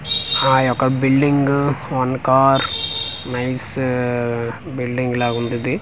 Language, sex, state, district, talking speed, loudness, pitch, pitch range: Telugu, male, Andhra Pradesh, Manyam, 80 wpm, -18 LUFS, 125 Hz, 120-135 Hz